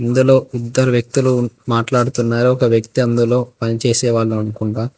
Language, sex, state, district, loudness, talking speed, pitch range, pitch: Telugu, male, Telangana, Hyderabad, -16 LUFS, 110 wpm, 115-125 Hz, 120 Hz